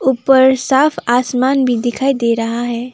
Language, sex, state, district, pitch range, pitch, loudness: Hindi, female, West Bengal, Alipurduar, 240-265 Hz, 255 Hz, -14 LUFS